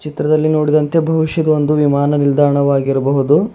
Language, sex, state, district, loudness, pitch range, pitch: Kannada, male, Karnataka, Bidar, -14 LUFS, 140-155 Hz, 150 Hz